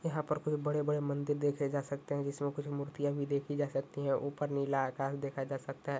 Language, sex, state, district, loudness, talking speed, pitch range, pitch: Hindi, male, Uttar Pradesh, Ghazipur, -36 LUFS, 240 wpm, 140-145 Hz, 140 Hz